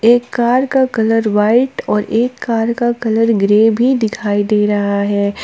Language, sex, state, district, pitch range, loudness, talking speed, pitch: Hindi, female, Jharkhand, Palamu, 210-240 Hz, -14 LUFS, 175 wpm, 225 Hz